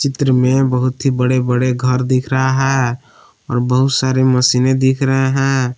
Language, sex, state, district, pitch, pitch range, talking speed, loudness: Hindi, male, Jharkhand, Palamu, 130 Hz, 125-135 Hz, 175 wpm, -15 LUFS